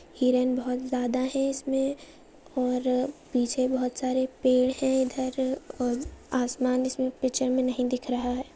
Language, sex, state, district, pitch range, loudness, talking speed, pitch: Hindi, female, Andhra Pradesh, Visakhapatnam, 250-265 Hz, -27 LUFS, 155 wpm, 255 Hz